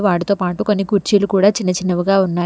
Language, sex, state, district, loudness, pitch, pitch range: Telugu, female, Telangana, Hyderabad, -16 LUFS, 195 Hz, 180-205 Hz